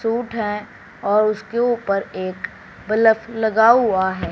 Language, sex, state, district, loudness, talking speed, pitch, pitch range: Hindi, female, Haryana, Charkhi Dadri, -19 LUFS, 140 wpm, 220 Hz, 205-230 Hz